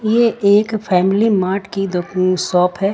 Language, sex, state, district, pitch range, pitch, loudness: Hindi, female, Jharkhand, Ranchi, 185-210 Hz, 195 Hz, -16 LUFS